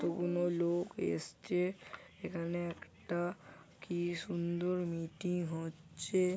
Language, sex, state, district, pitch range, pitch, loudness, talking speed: Bengali, male, West Bengal, Kolkata, 170-180 Hz, 175 Hz, -38 LUFS, 85 wpm